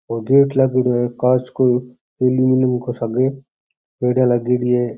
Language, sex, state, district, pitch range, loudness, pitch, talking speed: Rajasthani, male, Rajasthan, Churu, 125-130 Hz, -17 LUFS, 125 Hz, 130 wpm